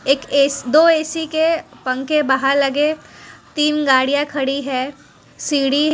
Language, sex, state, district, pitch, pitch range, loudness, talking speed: Hindi, female, Gujarat, Valsad, 285 Hz, 275-305 Hz, -17 LUFS, 130 wpm